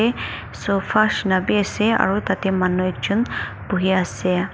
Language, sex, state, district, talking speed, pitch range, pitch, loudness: Nagamese, female, Nagaland, Dimapur, 145 wpm, 185-215 Hz, 195 Hz, -20 LUFS